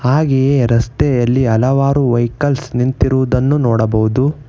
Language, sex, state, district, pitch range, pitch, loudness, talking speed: Kannada, male, Karnataka, Bangalore, 120-140 Hz, 130 Hz, -14 LUFS, 80 wpm